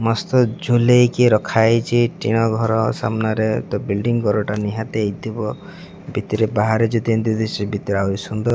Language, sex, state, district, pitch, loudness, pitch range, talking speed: Odia, male, Odisha, Malkangiri, 110 Hz, -19 LUFS, 105-120 Hz, 145 wpm